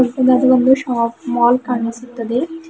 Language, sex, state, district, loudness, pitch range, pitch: Kannada, female, Karnataka, Bidar, -16 LUFS, 240-255 Hz, 250 Hz